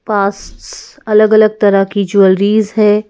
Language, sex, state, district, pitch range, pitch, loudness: Hindi, female, Madhya Pradesh, Bhopal, 200-215 Hz, 210 Hz, -11 LUFS